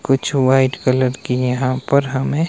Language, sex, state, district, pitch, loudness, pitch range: Hindi, male, Himachal Pradesh, Shimla, 130 Hz, -17 LUFS, 130-140 Hz